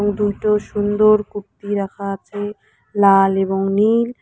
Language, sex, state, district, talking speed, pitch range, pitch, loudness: Bengali, female, West Bengal, Cooch Behar, 115 wpm, 195-210 Hz, 205 Hz, -17 LUFS